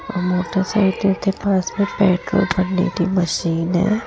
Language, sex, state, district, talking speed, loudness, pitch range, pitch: Hindi, female, Rajasthan, Jaipur, 130 wpm, -19 LUFS, 180-200 Hz, 190 Hz